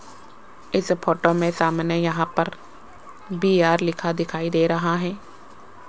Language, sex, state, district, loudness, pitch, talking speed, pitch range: Hindi, female, Rajasthan, Jaipur, -22 LUFS, 170 Hz, 120 wpm, 165-170 Hz